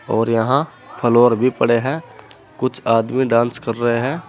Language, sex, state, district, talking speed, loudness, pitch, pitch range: Hindi, male, Uttar Pradesh, Saharanpur, 170 wpm, -17 LUFS, 120 Hz, 115-130 Hz